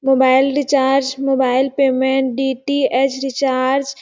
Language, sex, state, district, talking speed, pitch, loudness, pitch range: Hindi, female, Chhattisgarh, Sarguja, 105 wpm, 270 Hz, -16 LUFS, 265-275 Hz